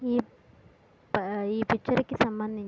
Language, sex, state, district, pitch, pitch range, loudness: Telugu, female, Andhra Pradesh, Guntur, 220 Hz, 210-245 Hz, -29 LUFS